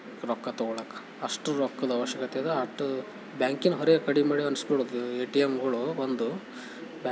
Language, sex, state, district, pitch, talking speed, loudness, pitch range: Kannada, male, Karnataka, Bijapur, 135 Hz, 125 wpm, -29 LUFS, 125-145 Hz